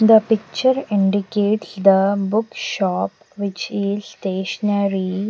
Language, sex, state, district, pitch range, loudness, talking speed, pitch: English, female, Punjab, Pathankot, 190-210 Hz, -19 LUFS, 100 wpm, 200 Hz